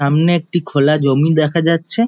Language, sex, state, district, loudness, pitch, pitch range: Bengali, male, West Bengal, Jhargram, -15 LUFS, 160 Hz, 150-170 Hz